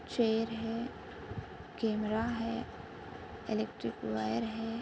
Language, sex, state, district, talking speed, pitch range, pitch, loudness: Hindi, female, Andhra Pradesh, Anantapur, 85 wpm, 215-230 Hz, 225 Hz, -36 LUFS